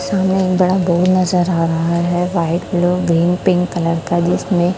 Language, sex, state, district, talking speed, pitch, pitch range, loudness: Hindi, female, Chhattisgarh, Raipur, 190 wpm, 175 Hz, 170-185 Hz, -16 LUFS